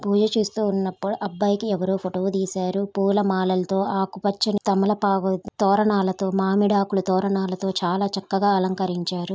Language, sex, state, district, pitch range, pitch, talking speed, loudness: Telugu, female, Andhra Pradesh, Guntur, 190-200 Hz, 195 Hz, 115 wpm, -22 LUFS